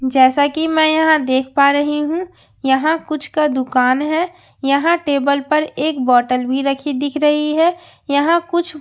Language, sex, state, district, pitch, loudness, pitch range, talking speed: Hindi, female, Bihar, Katihar, 295 Hz, -16 LUFS, 275-315 Hz, 170 wpm